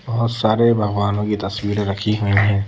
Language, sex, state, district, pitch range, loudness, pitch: Hindi, female, Madhya Pradesh, Bhopal, 100-110 Hz, -19 LUFS, 105 Hz